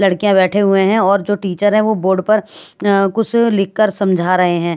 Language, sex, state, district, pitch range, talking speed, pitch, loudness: Hindi, female, Punjab, Pathankot, 190-210 Hz, 215 wpm, 200 Hz, -14 LUFS